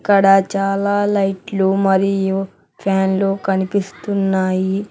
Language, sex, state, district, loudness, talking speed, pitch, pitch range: Telugu, male, Telangana, Hyderabad, -17 LUFS, 75 wpm, 195 Hz, 190-195 Hz